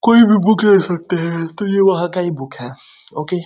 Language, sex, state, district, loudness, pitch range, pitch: Hindi, male, West Bengal, Kolkata, -15 LUFS, 165-200 Hz, 180 Hz